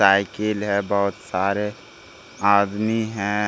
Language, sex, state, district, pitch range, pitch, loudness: Hindi, male, Bihar, Jamui, 100-105 Hz, 100 Hz, -22 LUFS